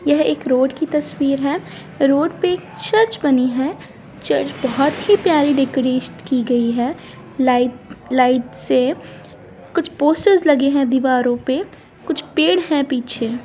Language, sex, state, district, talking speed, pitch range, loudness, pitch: Hindi, female, Bihar, Darbhanga, 135 wpm, 255-310 Hz, -17 LUFS, 275 Hz